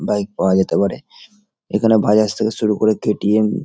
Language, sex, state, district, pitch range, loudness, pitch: Bengali, male, West Bengal, Dakshin Dinajpur, 100-110 Hz, -17 LUFS, 105 Hz